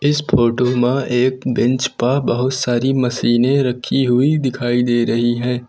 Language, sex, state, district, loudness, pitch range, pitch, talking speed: Hindi, male, Uttar Pradesh, Lucknow, -17 LUFS, 120-130 Hz, 125 Hz, 160 wpm